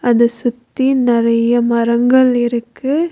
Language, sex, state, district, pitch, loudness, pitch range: Tamil, female, Tamil Nadu, Nilgiris, 240 Hz, -14 LUFS, 235-255 Hz